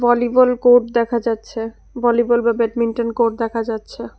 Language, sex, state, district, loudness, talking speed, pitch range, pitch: Bengali, female, Tripura, West Tripura, -17 LUFS, 145 wpm, 230-240 Hz, 235 Hz